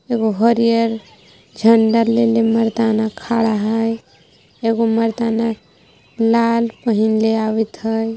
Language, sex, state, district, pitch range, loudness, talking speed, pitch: Magahi, female, Jharkhand, Palamu, 220-230 Hz, -17 LUFS, 90 wpm, 225 Hz